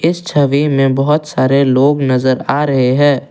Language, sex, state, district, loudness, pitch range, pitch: Hindi, male, Assam, Kamrup Metropolitan, -13 LUFS, 135-145 Hz, 140 Hz